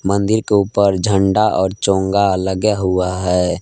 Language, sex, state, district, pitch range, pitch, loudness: Hindi, male, Jharkhand, Palamu, 95-100 Hz, 95 Hz, -16 LUFS